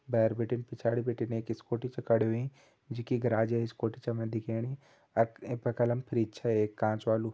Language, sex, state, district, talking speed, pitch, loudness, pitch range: Hindi, male, Uttarakhand, Tehri Garhwal, 165 wpm, 115 Hz, -32 LUFS, 115-120 Hz